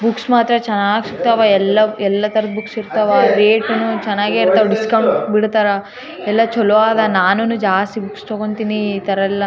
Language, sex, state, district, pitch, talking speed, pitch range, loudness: Kannada, female, Karnataka, Raichur, 215 Hz, 160 wpm, 205-220 Hz, -15 LUFS